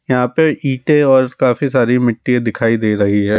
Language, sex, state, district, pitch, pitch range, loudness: Hindi, male, Rajasthan, Jaipur, 125 Hz, 115-135 Hz, -14 LUFS